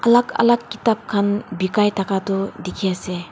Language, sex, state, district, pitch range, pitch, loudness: Nagamese, female, Nagaland, Dimapur, 185-225 Hz, 200 Hz, -20 LUFS